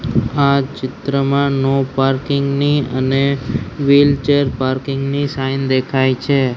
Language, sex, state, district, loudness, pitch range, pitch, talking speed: Gujarati, male, Gujarat, Gandhinagar, -16 LUFS, 130-140 Hz, 135 Hz, 110 wpm